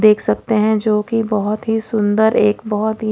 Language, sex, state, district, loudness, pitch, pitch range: Hindi, female, Odisha, Khordha, -16 LUFS, 215 Hz, 210-220 Hz